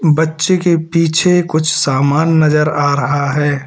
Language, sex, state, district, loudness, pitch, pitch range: Hindi, male, Uttar Pradesh, Lalitpur, -13 LUFS, 155 Hz, 145-165 Hz